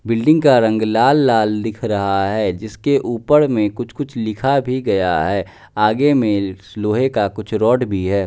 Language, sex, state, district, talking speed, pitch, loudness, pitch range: Hindi, male, Bihar, West Champaran, 180 wpm, 110 Hz, -17 LUFS, 105-130 Hz